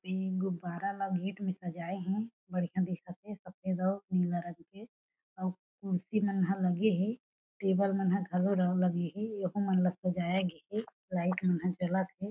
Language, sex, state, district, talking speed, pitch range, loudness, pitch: Chhattisgarhi, female, Chhattisgarh, Jashpur, 185 wpm, 180-195 Hz, -33 LUFS, 185 Hz